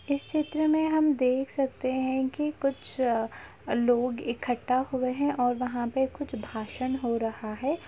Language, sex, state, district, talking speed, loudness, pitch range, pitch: Hindi, female, Uttar Pradesh, Jalaun, 165 wpm, -28 LUFS, 245-280 Hz, 260 Hz